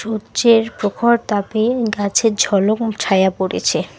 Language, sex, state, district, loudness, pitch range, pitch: Bengali, female, West Bengal, Alipurduar, -17 LUFS, 195-225 Hz, 215 Hz